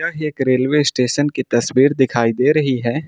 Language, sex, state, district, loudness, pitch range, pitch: Hindi, male, Uttar Pradesh, Lucknow, -17 LUFS, 125-145 Hz, 135 Hz